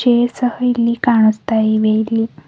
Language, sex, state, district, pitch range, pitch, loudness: Kannada, female, Karnataka, Bidar, 220-245 Hz, 230 Hz, -15 LUFS